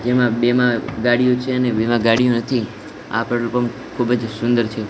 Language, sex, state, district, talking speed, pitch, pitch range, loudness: Gujarati, male, Gujarat, Gandhinagar, 195 wpm, 120 Hz, 115-125 Hz, -18 LUFS